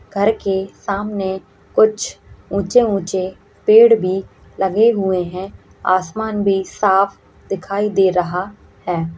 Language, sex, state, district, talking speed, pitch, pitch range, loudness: Hindi, female, Uttarakhand, Uttarkashi, 110 wpm, 195 Hz, 185-210 Hz, -17 LUFS